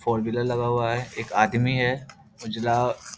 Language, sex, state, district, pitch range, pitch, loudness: Hindi, male, Bihar, Jahanabad, 110-125 Hz, 120 Hz, -25 LUFS